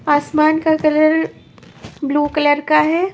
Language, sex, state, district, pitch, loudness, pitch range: Hindi, female, Maharashtra, Washim, 305 Hz, -15 LUFS, 295-315 Hz